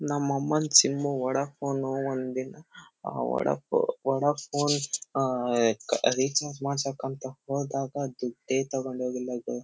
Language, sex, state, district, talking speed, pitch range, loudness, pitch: Kannada, male, Karnataka, Shimoga, 130 wpm, 130-140 Hz, -28 LUFS, 135 Hz